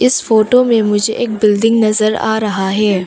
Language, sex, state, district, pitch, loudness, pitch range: Hindi, female, Arunachal Pradesh, Longding, 215 Hz, -13 LUFS, 210-230 Hz